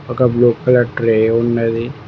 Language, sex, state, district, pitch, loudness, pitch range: Telugu, male, Telangana, Mahabubabad, 120 Hz, -14 LUFS, 115-125 Hz